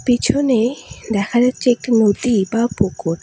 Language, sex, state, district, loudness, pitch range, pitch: Bengali, female, West Bengal, Alipurduar, -17 LUFS, 205-245 Hz, 235 Hz